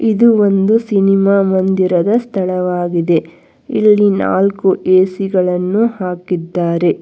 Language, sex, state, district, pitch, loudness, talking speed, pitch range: Kannada, female, Karnataka, Bangalore, 190 Hz, -14 LUFS, 85 wpm, 180-200 Hz